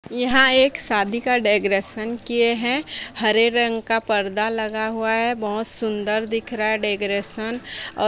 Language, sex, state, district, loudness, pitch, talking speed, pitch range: Hindi, female, Odisha, Sambalpur, -20 LUFS, 225 Hz, 155 wpm, 215-235 Hz